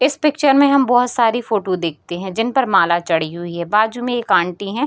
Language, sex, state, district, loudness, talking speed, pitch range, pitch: Hindi, female, Bihar, Darbhanga, -17 LUFS, 235 wpm, 175-250 Hz, 220 Hz